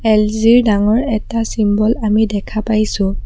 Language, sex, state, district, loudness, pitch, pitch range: Assamese, female, Assam, Sonitpur, -15 LUFS, 215 Hz, 210-225 Hz